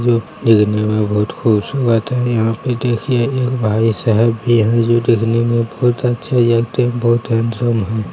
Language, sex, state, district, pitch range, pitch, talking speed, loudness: Hindi, male, Bihar, Bhagalpur, 110-120 Hz, 115 Hz, 160 wpm, -15 LUFS